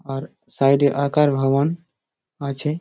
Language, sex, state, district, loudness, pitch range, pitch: Bengali, male, West Bengal, Malda, -20 LUFS, 135-150 Hz, 140 Hz